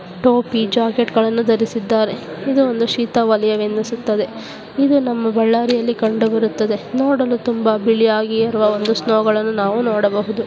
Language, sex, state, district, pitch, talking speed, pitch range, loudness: Kannada, female, Karnataka, Bellary, 225 Hz, 115 wpm, 215-235 Hz, -17 LUFS